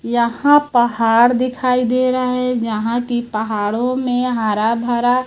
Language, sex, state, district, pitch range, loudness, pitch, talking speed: Hindi, male, Chhattisgarh, Raipur, 230-250 Hz, -17 LUFS, 240 Hz, 135 wpm